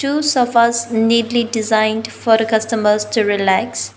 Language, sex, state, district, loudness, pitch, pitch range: English, female, Nagaland, Dimapur, -16 LUFS, 225 Hz, 215-235 Hz